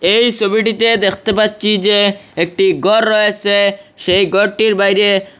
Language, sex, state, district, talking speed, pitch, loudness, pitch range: Bengali, male, Assam, Hailakandi, 120 wpm, 210 Hz, -13 LUFS, 200-220 Hz